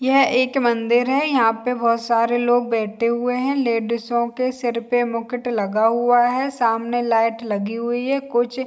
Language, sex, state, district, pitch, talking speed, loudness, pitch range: Hindi, female, Bihar, Saharsa, 240 Hz, 185 wpm, -20 LUFS, 230-250 Hz